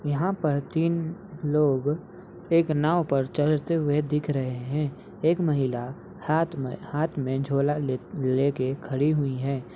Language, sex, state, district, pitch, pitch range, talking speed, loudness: Hindi, male, Uttar Pradesh, Budaun, 150 Hz, 135-160 Hz, 140 wpm, -26 LUFS